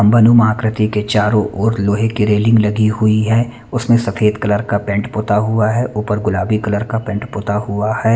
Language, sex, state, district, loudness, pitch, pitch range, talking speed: Hindi, male, Chandigarh, Chandigarh, -15 LUFS, 110 Hz, 105-115 Hz, 190 wpm